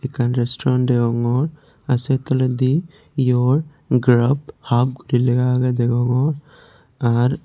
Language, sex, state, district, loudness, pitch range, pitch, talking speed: Chakma, male, Tripura, West Tripura, -19 LUFS, 120-135 Hz, 125 Hz, 115 wpm